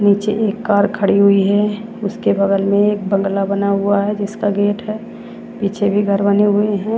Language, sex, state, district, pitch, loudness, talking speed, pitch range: Hindi, female, Chandigarh, Chandigarh, 205 Hz, -16 LUFS, 200 wpm, 200-210 Hz